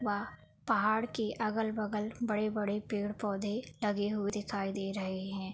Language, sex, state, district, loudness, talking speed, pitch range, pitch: Hindi, female, Uttar Pradesh, Budaun, -34 LUFS, 150 wpm, 205-215 Hz, 210 Hz